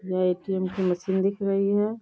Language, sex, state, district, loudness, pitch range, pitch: Hindi, female, Uttar Pradesh, Deoria, -25 LUFS, 185-200 Hz, 190 Hz